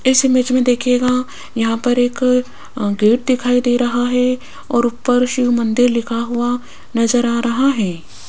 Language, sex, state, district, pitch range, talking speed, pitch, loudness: Hindi, female, Rajasthan, Jaipur, 235-250 Hz, 160 wpm, 245 Hz, -16 LUFS